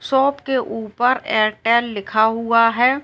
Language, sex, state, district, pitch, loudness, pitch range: Hindi, female, Uttar Pradesh, Gorakhpur, 235 Hz, -18 LUFS, 220-260 Hz